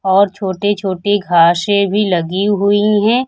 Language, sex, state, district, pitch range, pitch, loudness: Hindi, female, Bihar, Kaimur, 190-205 Hz, 200 Hz, -14 LUFS